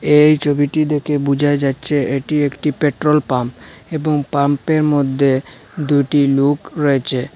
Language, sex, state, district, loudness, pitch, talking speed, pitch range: Bengali, male, Assam, Hailakandi, -16 LUFS, 145 Hz, 120 wpm, 140-150 Hz